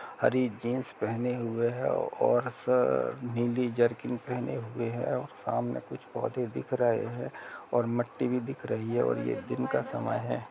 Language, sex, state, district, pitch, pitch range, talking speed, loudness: Hindi, male, Jharkhand, Jamtara, 120 Hz, 115-125 Hz, 175 wpm, -31 LUFS